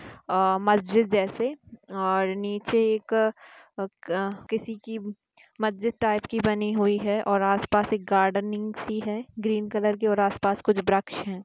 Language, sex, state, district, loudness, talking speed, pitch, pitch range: Hindi, female, Bihar, Muzaffarpur, -26 LUFS, 150 wpm, 210 Hz, 200-220 Hz